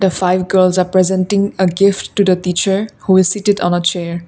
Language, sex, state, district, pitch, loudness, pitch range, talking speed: English, female, Assam, Kamrup Metropolitan, 185 Hz, -14 LUFS, 180-195 Hz, 225 wpm